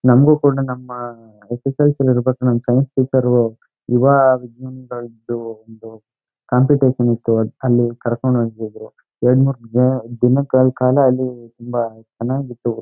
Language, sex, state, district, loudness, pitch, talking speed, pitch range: Kannada, male, Karnataka, Chamarajanagar, -17 LUFS, 125 Hz, 105 wpm, 120-130 Hz